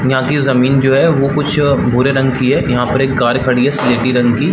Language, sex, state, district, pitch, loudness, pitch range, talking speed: Hindi, male, Chhattisgarh, Balrampur, 130 Hz, -13 LUFS, 125-140 Hz, 280 wpm